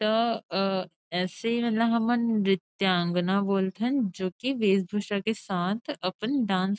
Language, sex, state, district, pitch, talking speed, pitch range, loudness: Chhattisgarhi, female, Chhattisgarh, Rajnandgaon, 200 Hz, 150 wpm, 185-230 Hz, -27 LUFS